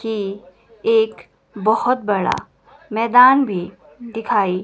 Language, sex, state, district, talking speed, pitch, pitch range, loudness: Hindi, female, Himachal Pradesh, Shimla, 90 wpm, 225 Hz, 200-250 Hz, -18 LUFS